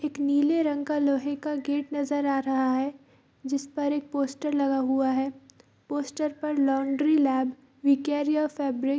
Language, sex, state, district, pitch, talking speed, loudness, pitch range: Hindi, female, Bihar, Darbhanga, 280 Hz, 185 wpm, -27 LUFS, 270-295 Hz